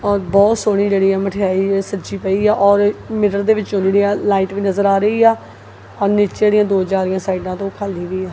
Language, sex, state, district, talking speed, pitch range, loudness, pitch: Punjabi, female, Punjab, Kapurthala, 210 wpm, 195-205 Hz, -16 LUFS, 200 Hz